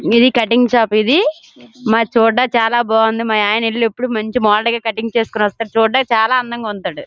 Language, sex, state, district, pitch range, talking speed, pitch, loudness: Telugu, female, Andhra Pradesh, Srikakulam, 220-245 Hz, 185 wpm, 230 Hz, -15 LUFS